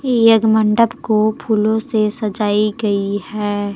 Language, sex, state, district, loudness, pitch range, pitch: Hindi, female, Jharkhand, Palamu, -16 LUFS, 210-220 Hz, 215 Hz